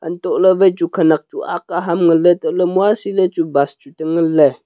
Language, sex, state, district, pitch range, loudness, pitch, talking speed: Wancho, male, Arunachal Pradesh, Longding, 160-185 Hz, -15 LUFS, 170 Hz, 165 wpm